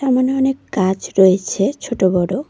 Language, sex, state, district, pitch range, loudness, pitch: Bengali, female, West Bengal, Cooch Behar, 190-265 Hz, -16 LUFS, 195 Hz